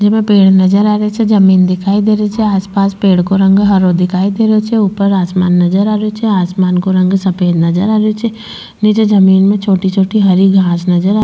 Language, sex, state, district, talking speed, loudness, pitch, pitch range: Rajasthani, female, Rajasthan, Churu, 240 wpm, -11 LUFS, 195 Hz, 185-210 Hz